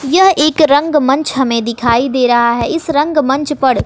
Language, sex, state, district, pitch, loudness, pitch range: Hindi, female, Bihar, West Champaran, 280 Hz, -12 LUFS, 245-300 Hz